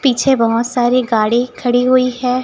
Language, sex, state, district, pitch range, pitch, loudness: Hindi, female, Chhattisgarh, Raipur, 240-255 Hz, 245 Hz, -14 LUFS